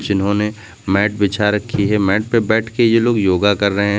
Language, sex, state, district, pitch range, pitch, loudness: Hindi, male, Uttar Pradesh, Lucknow, 100-110 Hz, 105 Hz, -16 LUFS